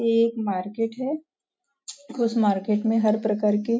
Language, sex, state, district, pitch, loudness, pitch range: Hindi, female, Maharashtra, Nagpur, 225 Hz, -24 LUFS, 210-260 Hz